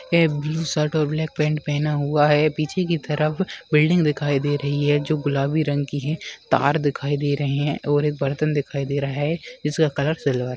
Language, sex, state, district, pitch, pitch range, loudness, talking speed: Hindi, female, West Bengal, Dakshin Dinajpur, 150 Hz, 145-155 Hz, -22 LUFS, 215 wpm